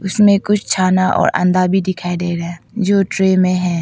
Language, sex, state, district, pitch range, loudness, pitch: Hindi, female, Arunachal Pradesh, Papum Pare, 180-195 Hz, -15 LUFS, 185 Hz